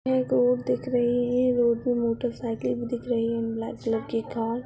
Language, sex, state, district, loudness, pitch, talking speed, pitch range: Hindi, female, Uttar Pradesh, Budaun, -26 LUFS, 240 Hz, 220 wpm, 230-250 Hz